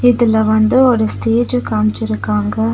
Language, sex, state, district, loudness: Tamil, female, Tamil Nadu, Nilgiris, -14 LUFS